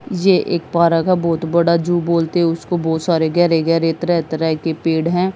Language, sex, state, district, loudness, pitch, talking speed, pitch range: Hindi, female, Haryana, Jhajjar, -17 LUFS, 170 Hz, 215 wpm, 165-175 Hz